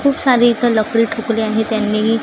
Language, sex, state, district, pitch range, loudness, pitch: Marathi, female, Maharashtra, Gondia, 220-240 Hz, -15 LUFS, 225 Hz